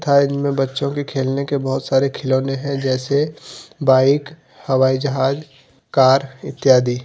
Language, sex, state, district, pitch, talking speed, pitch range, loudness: Hindi, male, Jharkhand, Deoghar, 135 Hz, 135 wpm, 130-140 Hz, -18 LUFS